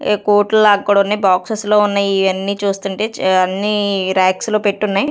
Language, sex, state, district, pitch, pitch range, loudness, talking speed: Telugu, female, Andhra Pradesh, Sri Satya Sai, 200 Hz, 195-210 Hz, -15 LUFS, 175 wpm